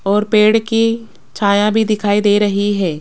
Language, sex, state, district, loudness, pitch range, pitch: Hindi, female, Rajasthan, Jaipur, -14 LUFS, 205-220 Hz, 210 Hz